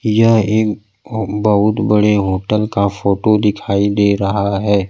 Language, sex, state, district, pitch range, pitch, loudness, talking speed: Hindi, male, Bihar, Kaimur, 100-110 Hz, 105 Hz, -15 LUFS, 145 wpm